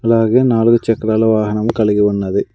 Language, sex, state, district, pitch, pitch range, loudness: Telugu, male, Andhra Pradesh, Sri Satya Sai, 110 Hz, 105-115 Hz, -14 LUFS